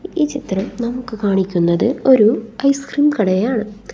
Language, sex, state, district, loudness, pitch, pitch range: Malayalam, female, Kerala, Kasaragod, -17 LUFS, 230 Hz, 200-275 Hz